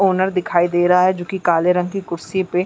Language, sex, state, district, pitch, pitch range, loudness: Hindi, female, Uttarakhand, Uttarkashi, 180 Hz, 175-190 Hz, -18 LUFS